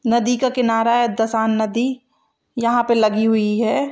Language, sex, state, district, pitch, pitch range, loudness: Hindi, male, Uttar Pradesh, Hamirpur, 235 Hz, 225-245 Hz, -18 LUFS